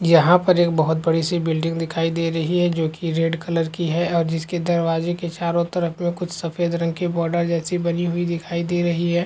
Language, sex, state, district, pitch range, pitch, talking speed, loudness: Hindi, female, Chhattisgarh, Rajnandgaon, 165-175 Hz, 170 Hz, 225 wpm, -21 LUFS